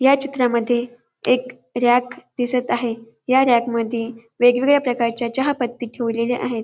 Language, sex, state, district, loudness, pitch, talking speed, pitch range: Marathi, female, Maharashtra, Dhule, -20 LUFS, 245 Hz, 125 wpm, 235-250 Hz